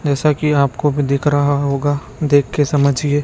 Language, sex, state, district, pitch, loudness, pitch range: Hindi, male, Chhattisgarh, Raipur, 145 Hz, -16 LUFS, 140-145 Hz